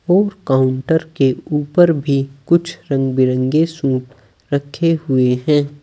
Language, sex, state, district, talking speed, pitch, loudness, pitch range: Hindi, male, Uttar Pradesh, Saharanpur, 125 wpm, 140 Hz, -17 LUFS, 130-165 Hz